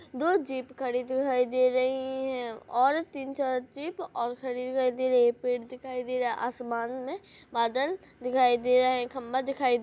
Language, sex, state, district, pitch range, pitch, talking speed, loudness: Hindi, female, Chhattisgarh, Rajnandgaon, 250-265 Hz, 255 Hz, 175 wpm, -29 LUFS